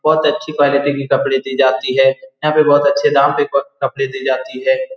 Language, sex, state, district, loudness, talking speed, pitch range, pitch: Hindi, male, Bihar, Saran, -15 LUFS, 215 wpm, 135-150 Hz, 140 Hz